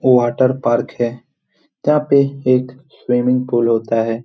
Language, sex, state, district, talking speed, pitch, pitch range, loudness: Hindi, male, Bihar, Jamui, 140 wpm, 125 Hz, 120-130 Hz, -16 LUFS